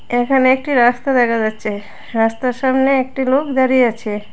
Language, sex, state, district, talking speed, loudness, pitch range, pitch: Bengali, female, Tripura, West Tripura, 150 wpm, -16 LUFS, 225-265 Hz, 250 Hz